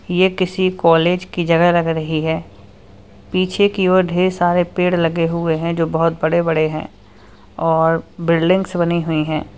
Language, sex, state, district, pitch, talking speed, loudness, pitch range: Hindi, male, Uttar Pradesh, Lalitpur, 165 Hz, 170 wpm, -17 LUFS, 155-180 Hz